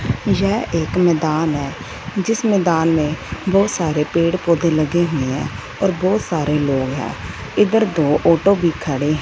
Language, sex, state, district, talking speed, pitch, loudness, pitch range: Hindi, female, Punjab, Fazilka, 155 wpm, 165 Hz, -18 LUFS, 150-190 Hz